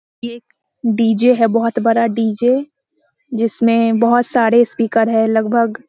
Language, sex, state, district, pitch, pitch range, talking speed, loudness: Hindi, female, Bihar, Muzaffarpur, 230 Hz, 225-240 Hz, 140 wpm, -15 LUFS